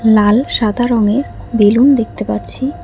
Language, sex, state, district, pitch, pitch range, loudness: Bengali, female, West Bengal, Alipurduar, 215 Hz, 205-240 Hz, -13 LUFS